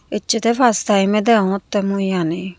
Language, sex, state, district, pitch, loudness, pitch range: Chakma, female, Tripura, Unakoti, 200 Hz, -17 LUFS, 190-225 Hz